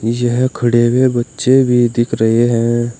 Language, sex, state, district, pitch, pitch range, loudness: Hindi, male, Uttar Pradesh, Saharanpur, 120 Hz, 120-125 Hz, -14 LUFS